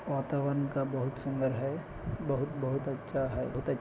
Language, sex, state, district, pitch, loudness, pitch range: Hindi, male, Maharashtra, Solapur, 135 Hz, -34 LUFS, 135-140 Hz